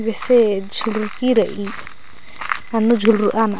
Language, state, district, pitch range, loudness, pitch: Kurukh, Chhattisgarh, Jashpur, 210-225 Hz, -18 LUFS, 220 Hz